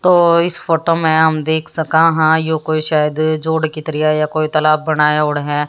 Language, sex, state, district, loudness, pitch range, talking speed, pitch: Hindi, female, Haryana, Jhajjar, -14 LUFS, 155-160 Hz, 210 wpm, 155 Hz